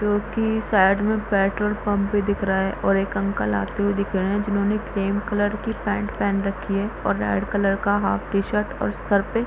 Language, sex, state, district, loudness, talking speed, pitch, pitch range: Hindi, female, Bihar, East Champaran, -23 LUFS, 220 wpm, 205 Hz, 195-210 Hz